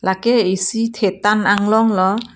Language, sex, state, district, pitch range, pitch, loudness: Karbi, female, Assam, Karbi Anglong, 190-225 Hz, 210 Hz, -16 LUFS